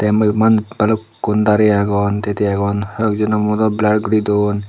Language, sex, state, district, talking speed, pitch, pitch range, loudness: Chakma, male, Tripura, Dhalai, 180 wpm, 105 Hz, 105-110 Hz, -16 LUFS